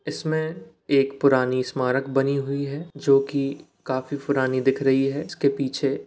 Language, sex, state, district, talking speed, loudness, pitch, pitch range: Hindi, male, Chhattisgarh, Bilaspur, 170 wpm, -23 LUFS, 140 Hz, 135-140 Hz